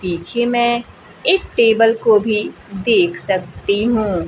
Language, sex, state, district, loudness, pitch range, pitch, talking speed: Hindi, female, Bihar, Kaimur, -16 LUFS, 195-240 Hz, 225 Hz, 125 wpm